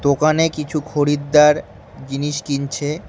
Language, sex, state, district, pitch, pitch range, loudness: Bengali, male, West Bengal, Cooch Behar, 145 Hz, 145-150 Hz, -18 LUFS